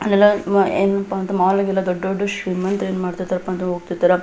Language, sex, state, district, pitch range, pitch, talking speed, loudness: Kannada, female, Karnataka, Belgaum, 180-195 Hz, 190 Hz, 140 wpm, -19 LUFS